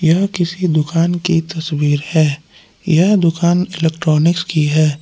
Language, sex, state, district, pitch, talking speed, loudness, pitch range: Hindi, male, Jharkhand, Palamu, 165 Hz, 130 wpm, -15 LUFS, 155-175 Hz